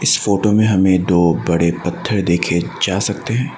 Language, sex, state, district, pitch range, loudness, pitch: Hindi, male, Assam, Sonitpur, 85-105 Hz, -16 LUFS, 95 Hz